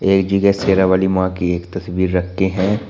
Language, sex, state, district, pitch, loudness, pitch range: Hindi, male, Uttar Pradesh, Shamli, 95 Hz, -17 LUFS, 90-95 Hz